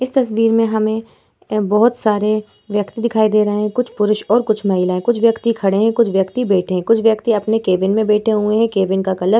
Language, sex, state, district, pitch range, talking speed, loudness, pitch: Hindi, female, Bihar, Vaishali, 205-225 Hz, 235 wpm, -16 LUFS, 215 Hz